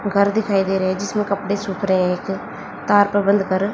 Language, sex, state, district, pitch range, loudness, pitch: Hindi, female, Haryana, Jhajjar, 195-205 Hz, -19 LUFS, 200 Hz